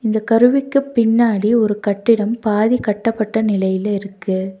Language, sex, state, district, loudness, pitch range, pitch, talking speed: Tamil, female, Tamil Nadu, Nilgiris, -17 LUFS, 205-230 Hz, 220 Hz, 115 wpm